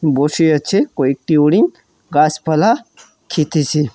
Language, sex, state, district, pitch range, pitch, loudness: Bengali, male, West Bengal, Cooch Behar, 145-160 Hz, 150 Hz, -15 LUFS